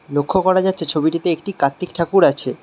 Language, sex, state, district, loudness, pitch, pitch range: Bengali, male, West Bengal, Alipurduar, -17 LUFS, 170 Hz, 145-185 Hz